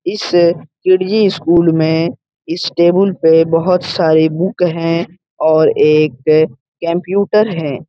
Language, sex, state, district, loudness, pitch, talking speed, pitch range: Hindi, male, Bihar, Lakhisarai, -13 LUFS, 170 Hz, 115 wpm, 160-180 Hz